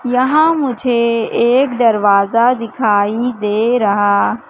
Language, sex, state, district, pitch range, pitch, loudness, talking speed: Hindi, female, Madhya Pradesh, Katni, 210-250 Hz, 235 Hz, -14 LUFS, 95 wpm